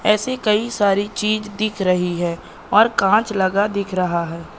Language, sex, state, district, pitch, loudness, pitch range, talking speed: Hindi, male, Madhya Pradesh, Katni, 205 Hz, -19 LUFS, 185-215 Hz, 170 wpm